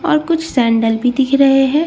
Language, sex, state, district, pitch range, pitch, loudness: Hindi, female, Bihar, Katihar, 245-305 Hz, 270 Hz, -14 LUFS